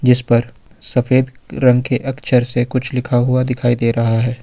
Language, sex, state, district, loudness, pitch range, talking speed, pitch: Hindi, male, Jharkhand, Ranchi, -16 LUFS, 120-130 Hz, 190 wpm, 125 Hz